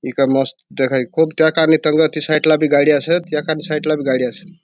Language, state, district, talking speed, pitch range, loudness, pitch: Bhili, Maharashtra, Dhule, 205 wpm, 140-160 Hz, -16 LUFS, 155 Hz